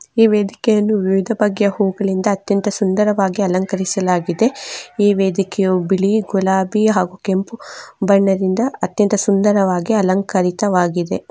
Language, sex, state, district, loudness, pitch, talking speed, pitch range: Kannada, female, Karnataka, Chamarajanagar, -16 LUFS, 195 Hz, 100 wpm, 190-210 Hz